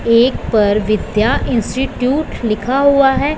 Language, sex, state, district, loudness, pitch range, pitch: Hindi, female, Punjab, Pathankot, -15 LUFS, 215-270 Hz, 245 Hz